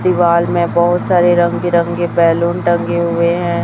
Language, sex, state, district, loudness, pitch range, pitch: Hindi, female, Chhattisgarh, Raipur, -14 LUFS, 170-175 Hz, 170 Hz